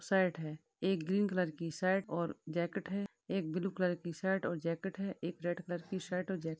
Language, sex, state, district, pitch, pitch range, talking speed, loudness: Hindi, female, Maharashtra, Chandrapur, 180 Hz, 170-190 Hz, 235 wpm, -37 LUFS